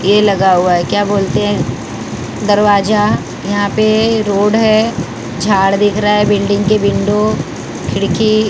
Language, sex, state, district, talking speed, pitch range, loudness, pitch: Hindi, female, Maharashtra, Mumbai Suburban, 140 wpm, 200-215 Hz, -13 LUFS, 205 Hz